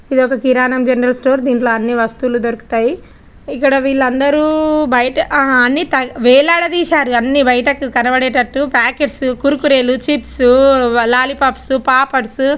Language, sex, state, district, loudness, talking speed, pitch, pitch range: Telugu, female, Telangana, Nalgonda, -13 LUFS, 105 wpm, 260 Hz, 250-280 Hz